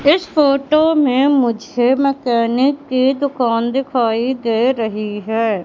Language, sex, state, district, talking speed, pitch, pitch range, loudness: Hindi, female, Madhya Pradesh, Katni, 115 wpm, 255 Hz, 230-275 Hz, -16 LUFS